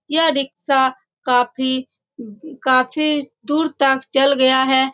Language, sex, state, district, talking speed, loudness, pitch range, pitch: Hindi, female, Bihar, Saran, 110 wpm, -17 LUFS, 260-295 Hz, 270 Hz